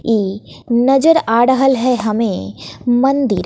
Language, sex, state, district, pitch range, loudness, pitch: Hindi, female, Bihar, West Champaran, 215-265 Hz, -14 LUFS, 240 Hz